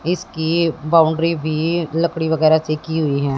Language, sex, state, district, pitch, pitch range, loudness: Hindi, female, Haryana, Jhajjar, 160 Hz, 155-165 Hz, -18 LUFS